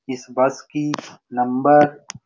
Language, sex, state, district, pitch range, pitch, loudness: Hindi, male, Bihar, Saran, 125-145 Hz, 130 Hz, -19 LUFS